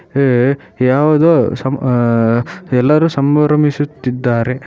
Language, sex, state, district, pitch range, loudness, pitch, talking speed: Kannada, male, Karnataka, Shimoga, 125-150 Hz, -13 LUFS, 135 Hz, 105 wpm